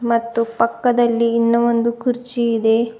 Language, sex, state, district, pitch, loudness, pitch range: Kannada, female, Karnataka, Bidar, 235 Hz, -18 LUFS, 230-235 Hz